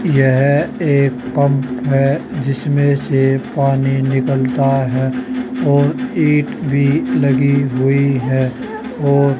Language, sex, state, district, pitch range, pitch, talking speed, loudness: Hindi, male, Haryana, Charkhi Dadri, 130-140 Hz, 135 Hz, 110 wpm, -15 LUFS